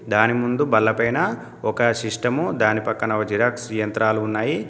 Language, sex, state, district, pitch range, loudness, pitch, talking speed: Telugu, male, Telangana, Komaram Bheem, 110-120 Hz, -21 LUFS, 110 Hz, 140 wpm